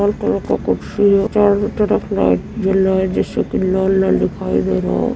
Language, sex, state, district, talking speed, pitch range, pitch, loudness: Awadhi, female, Uttar Pradesh, Varanasi, 210 wpm, 140-205 Hz, 195 Hz, -16 LUFS